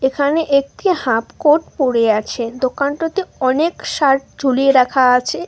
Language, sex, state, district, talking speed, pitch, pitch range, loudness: Bengali, female, West Bengal, Alipurduar, 120 wpm, 275 Hz, 255-305 Hz, -16 LUFS